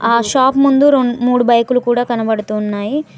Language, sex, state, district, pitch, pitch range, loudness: Telugu, female, Telangana, Mahabubabad, 245 Hz, 230-260 Hz, -14 LUFS